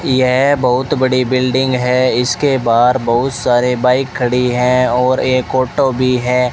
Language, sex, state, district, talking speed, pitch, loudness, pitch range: Hindi, male, Rajasthan, Bikaner, 155 wpm, 125 Hz, -14 LUFS, 125-130 Hz